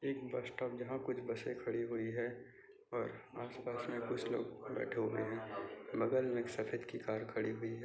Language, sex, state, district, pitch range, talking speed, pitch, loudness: Hindi, male, Maharashtra, Aurangabad, 110-125 Hz, 200 wpm, 120 Hz, -41 LUFS